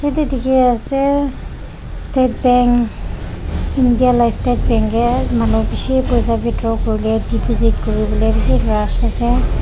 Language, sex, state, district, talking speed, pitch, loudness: Nagamese, female, Nagaland, Dimapur, 135 wpm, 235 Hz, -16 LUFS